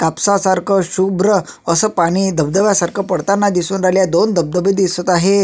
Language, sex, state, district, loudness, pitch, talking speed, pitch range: Marathi, male, Maharashtra, Sindhudurg, -15 LUFS, 190 Hz, 165 wpm, 175-195 Hz